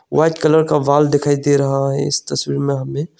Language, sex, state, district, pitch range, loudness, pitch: Hindi, male, Arunachal Pradesh, Longding, 140-150 Hz, -16 LUFS, 145 Hz